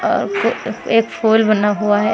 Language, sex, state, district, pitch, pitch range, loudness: Hindi, female, Uttar Pradesh, Shamli, 215 Hz, 210-225 Hz, -16 LUFS